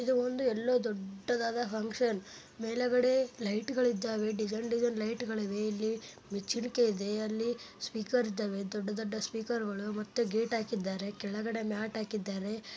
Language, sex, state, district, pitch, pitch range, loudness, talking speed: Kannada, male, Karnataka, Bellary, 220 Hz, 210-235 Hz, -34 LUFS, 125 wpm